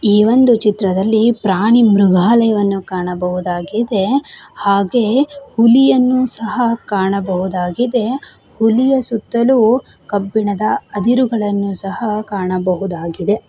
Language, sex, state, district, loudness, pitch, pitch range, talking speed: Kannada, female, Karnataka, Shimoga, -15 LUFS, 215 Hz, 195-240 Hz, 70 wpm